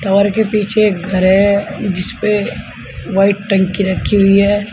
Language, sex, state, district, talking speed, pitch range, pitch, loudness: Hindi, male, Uttar Pradesh, Shamli, 165 wpm, 195-205 Hz, 200 Hz, -14 LUFS